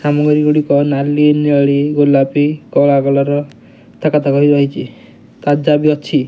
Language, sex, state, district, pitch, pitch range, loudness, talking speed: Odia, male, Odisha, Nuapada, 145 Hz, 140-150 Hz, -13 LUFS, 125 wpm